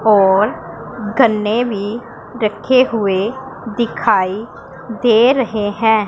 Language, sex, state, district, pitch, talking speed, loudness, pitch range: Hindi, female, Punjab, Pathankot, 220 Hz, 90 wpm, -15 LUFS, 210-235 Hz